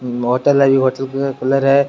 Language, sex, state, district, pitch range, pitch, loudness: Rajasthani, male, Rajasthan, Churu, 130-140 Hz, 135 Hz, -15 LUFS